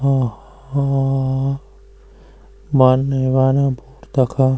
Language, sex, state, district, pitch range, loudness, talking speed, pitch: Garhwali, male, Uttarakhand, Uttarkashi, 130-140 Hz, -18 LUFS, 80 wpm, 135 Hz